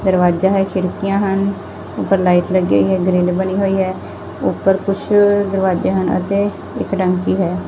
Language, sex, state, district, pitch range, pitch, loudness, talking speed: Punjabi, female, Punjab, Fazilka, 185-195 Hz, 190 Hz, -16 LUFS, 165 wpm